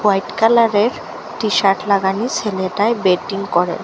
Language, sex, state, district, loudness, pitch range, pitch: Bengali, female, Assam, Hailakandi, -16 LUFS, 190-220 Hz, 205 Hz